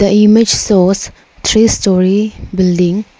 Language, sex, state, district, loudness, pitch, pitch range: English, female, Arunachal Pradesh, Lower Dibang Valley, -11 LUFS, 200 Hz, 185-210 Hz